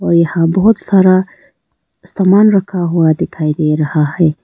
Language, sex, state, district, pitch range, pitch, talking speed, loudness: Hindi, female, Arunachal Pradesh, Lower Dibang Valley, 160-190 Hz, 170 Hz, 135 wpm, -12 LUFS